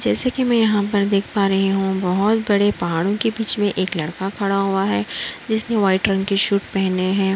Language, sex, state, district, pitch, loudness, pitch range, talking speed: Hindi, female, Uttar Pradesh, Budaun, 195 Hz, -19 LUFS, 190-210 Hz, 220 wpm